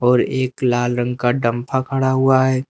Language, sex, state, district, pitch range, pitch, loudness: Hindi, male, Uttar Pradesh, Lucknow, 120-130 Hz, 130 Hz, -18 LUFS